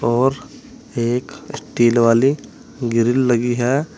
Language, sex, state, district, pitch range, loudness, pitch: Hindi, male, Uttar Pradesh, Saharanpur, 120-130 Hz, -18 LUFS, 120 Hz